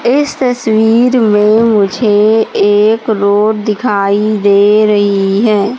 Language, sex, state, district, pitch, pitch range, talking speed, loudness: Hindi, female, Madhya Pradesh, Katni, 215 Hz, 205-225 Hz, 105 wpm, -10 LUFS